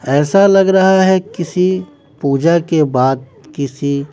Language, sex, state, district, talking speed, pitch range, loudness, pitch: Hindi, male, Bihar, West Champaran, 130 wpm, 140-185 Hz, -13 LUFS, 155 Hz